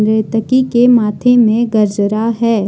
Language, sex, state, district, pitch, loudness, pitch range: Hindi, male, Jharkhand, Deoghar, 225 Hz, -12 LUFS, 215-240 Hz